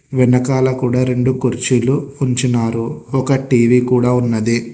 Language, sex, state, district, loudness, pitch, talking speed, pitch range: Telugu, male, Telangana, Hyderabad, -15 LUFS, 125 Hz, 115 wpm, 120-130 Hz